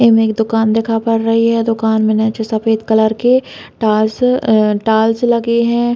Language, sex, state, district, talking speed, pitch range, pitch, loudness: Bundeli, female, Uttar Pradesh, Hamirpur, 180 wpm, 220-230 Hz, 225 Hz, -14 LUFS